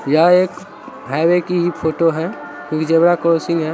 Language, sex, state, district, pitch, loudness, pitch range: Hindi, male, Bihar, Saharsa, 165 Hz, -16 LUFS, 160-175 Hz